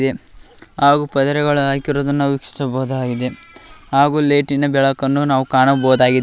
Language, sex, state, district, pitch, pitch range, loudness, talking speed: Kannada, male, Karnataka, Koppal, 140 Hz, 135-145 Hz, -16 LUFS, 85 wpm